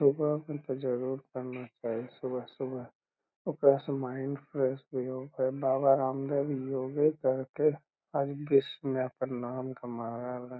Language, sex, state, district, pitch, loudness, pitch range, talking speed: Magahi, male, Bihar, Lakhisarai, 130 Hz, -32 LUFS, 130-140 Hz, 135 wpm